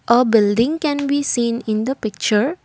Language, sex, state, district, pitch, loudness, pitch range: English, female, Assam, Kamrup Metropolitan, 235 Hz, -18 LUFS, 220-280 Hz